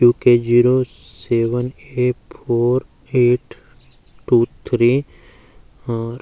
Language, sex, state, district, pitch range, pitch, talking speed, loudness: Garhwali, male, Uttarakhand, Uttarkashi, 120-125 Hz, 120 Hz, 95 wpm, -18 LUFS